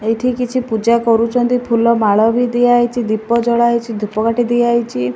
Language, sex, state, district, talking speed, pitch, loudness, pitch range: Odia, female, Odisha, Malkangiri, 175 wpm, 235 Hz, -15 LUFS, 225-240 Hz